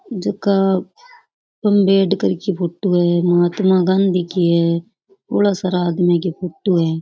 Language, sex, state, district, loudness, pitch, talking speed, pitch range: Rajasthani, female, Rajasthan, Churu, -17 LUFS, 185 Hz, 85 wpm, 175-200 Hz